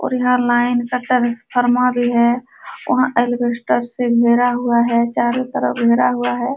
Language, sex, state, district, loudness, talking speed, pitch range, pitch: Hindi, female, Uttar Pradesh, Jalaun, -17 LUFS, 165 wpm, 235-250 Hz, 240 Hz